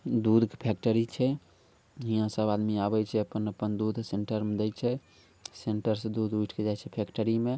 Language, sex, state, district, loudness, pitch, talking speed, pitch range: Maithili, male, Bihar, Sitamarhi, -30 LUFS, 110 Hz, 200 wpm, 105-115 Hz